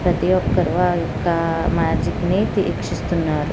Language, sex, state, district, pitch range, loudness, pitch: Telugu, female, Andhra Pradesh, Guntur, 160-180 Hz, -20 LUFS, 170 Hz